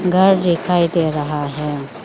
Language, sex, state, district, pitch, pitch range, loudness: Hindi, female, Arunachal Pradesh, Lower Dibang Valley, 165 Hz, 150-180 Hz, -16 LUFS